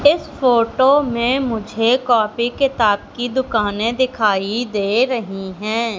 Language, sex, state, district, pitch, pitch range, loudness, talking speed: Hindi, female, Madhya Pradesh, Katni, 235 Hz, 215-255 Hz, -18 LUFS, 120 wpm